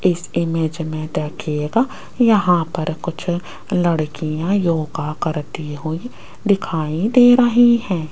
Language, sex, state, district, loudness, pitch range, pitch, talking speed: Hindi, female, Rajasthan, Jaipur, -19 LUFS, 155-200 Hz, 165 Hz, 110 wpm